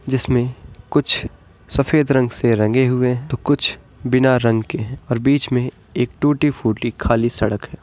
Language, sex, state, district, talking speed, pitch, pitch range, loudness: Hindi, male, Bihar, East Champaran, 170 wpm, 125 Hz, 120-135 Hz, -18 LUFS